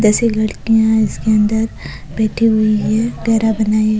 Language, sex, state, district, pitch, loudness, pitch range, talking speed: Rajasthani, female, Rajasthan, Nagaur, 220 Hz, -15 LUFS, 215-225 Hz, 150 wpm